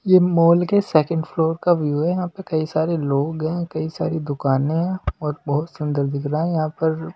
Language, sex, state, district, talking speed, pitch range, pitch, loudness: Hindi, male, Delhi, New Delhi, 220 wpm, 150-170 Hz, 160 Hz, -21 LUFS